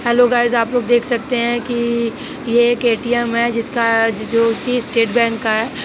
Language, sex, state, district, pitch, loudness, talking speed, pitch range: Hindi, female, Uttar Pradesh, Jalaun, 235 Hz, -16 LUFS, 195 wpm, 230-240 Hz